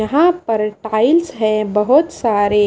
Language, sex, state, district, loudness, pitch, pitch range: Hindi, female, Maharashtra, Washim, -16 LUFS, 220 Hz, 210-295 Hz